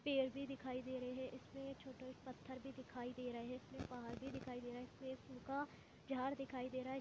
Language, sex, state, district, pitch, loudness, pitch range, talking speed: Hindi, female, Chhattisgarh, Bilaspur, 260 Hz, -48 LUFS, 255-270 Hz, 250 wpm